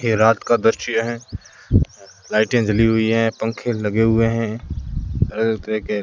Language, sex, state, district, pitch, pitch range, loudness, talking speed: Hindi, male, Rajasthan, Bikaner, 110 Hz, 105-115 Hz, -19 LUFS, 170 wpm